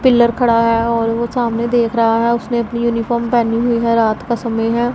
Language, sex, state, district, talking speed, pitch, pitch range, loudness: Hindi, female, Punjab, Pathankot, 230 wpm, 235 Hz, 230-235 Hz, -15 LUFS